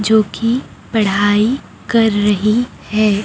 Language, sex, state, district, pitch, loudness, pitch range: Hindi, female, Chhattisgarh, Raipur, 215 Hz, -15 LUFS, 205-230 Hz